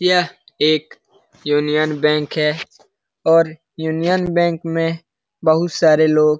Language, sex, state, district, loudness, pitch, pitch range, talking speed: Hindi, male, Bihar, Lakhisarai, -17 LUFS, 160 Hz, 150-165 Hz, 120 wpm